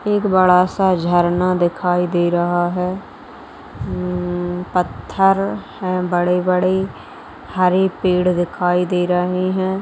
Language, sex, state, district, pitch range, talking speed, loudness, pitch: Hindi, female, Bihar, Gaya, 175-185 Hz, 105 wpm, -18 LUFS, 180 Hz